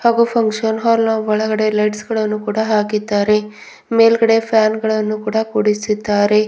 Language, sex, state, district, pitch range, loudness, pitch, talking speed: Kannada, female, Karnataka, Bidar, 210-225 Hz, -16 LUFS, 215 Hz, 130 wpm